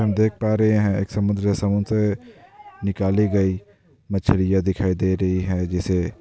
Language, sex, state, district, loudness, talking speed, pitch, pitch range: Hindi, male, Bihar, Darbhanga, -21 LUFS, 185 wpm, 100 Hz, 95-105 Hz